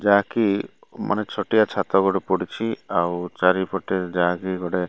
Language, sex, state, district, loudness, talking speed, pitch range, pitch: Odia, male, Odisha, Malkangiri, -22 LUFS, 135 wpm, 90-100 Hz, 95 Hz